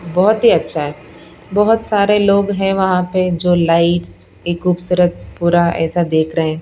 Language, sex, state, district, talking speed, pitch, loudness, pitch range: Hindi, female, Punjab, Pathankot, 170 wpm, 175 Hz, -15 LUFS, 170-195 Hz